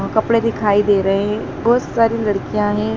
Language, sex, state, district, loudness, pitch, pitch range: Hindi, female, Madhya Pradesh, Dhar, -17 LUFS, 215 Hz, 205-230 Hz